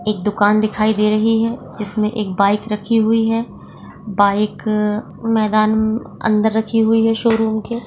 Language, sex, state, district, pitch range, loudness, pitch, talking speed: Hindi, female, Maharashtra, Chandrapur, 210-225 Hz, -17 LUFS, 215 Hz, 150 wpm